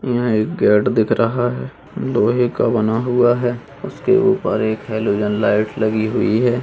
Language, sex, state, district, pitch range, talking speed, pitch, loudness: Hindi, male, Bihar, Purnia, 110-125 Hz, 170 wpm, 115 Hz, -17 LUFS